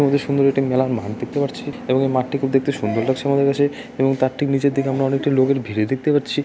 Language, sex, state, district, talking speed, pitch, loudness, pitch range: Bengali, male, West Bengal, Malda, 240 wpm, 135 Hz, -20 LUFS, 130-140 Hz